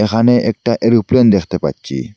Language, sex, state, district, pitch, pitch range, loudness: Bengali, male, Assam, Hailakandi, 115 Hz, 100-120 Hz, -14 LUFS